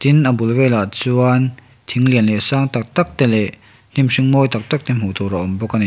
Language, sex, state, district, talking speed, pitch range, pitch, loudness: Mizo, male, Mizoram, Aizawl, 265 wpm, 110-130 Hz, 125 Hz, -16 LUFS